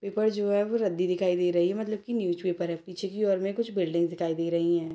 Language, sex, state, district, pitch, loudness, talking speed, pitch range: Hindi, female, Bihar, Purnia, 185 Hz, -28 LUFS, 280 wpm, 175-205 Hz